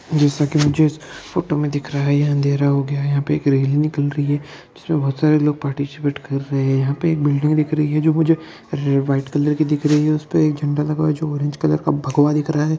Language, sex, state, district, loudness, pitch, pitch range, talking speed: Hindi, male, Chhattisgarh, Bilaspur, -19 LUFS, 150 Hz, 140-155 Hz, 265 wpm